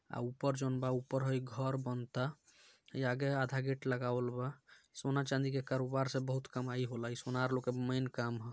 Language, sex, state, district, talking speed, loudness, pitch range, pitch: Bhojpuri, male, Bihar, Gopalganj, 210 wpm, -38 LUFS, 125-135 Hz, 130 Hz